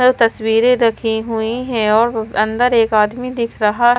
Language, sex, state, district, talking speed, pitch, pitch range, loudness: Hindi, female, Himachal Pradesh, Shimla, 150 wpm, 230 Hz, 220-245 Hz, -15 LUFS